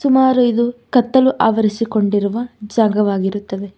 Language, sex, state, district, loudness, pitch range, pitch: Kannada, female, Karnataka, Bangalore, -16 LUFS, 205-245 Hz, 225 Hz